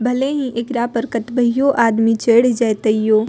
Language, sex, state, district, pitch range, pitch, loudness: Maithili, female, Bihar, Purnia, 225-245 Hz, 235 Hz, -16 LUFS